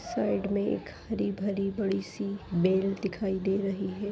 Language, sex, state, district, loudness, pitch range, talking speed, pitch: Hindi, female, Uttar Pradesh, Ghazipur, -30 LUFS, 190-200 Hz, 160 wpm, 195 Hz